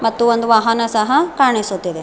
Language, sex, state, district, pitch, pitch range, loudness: Kannada, female, Karnataka, Bidar, 230 Hz, 215-235 Hz, -15 LUFS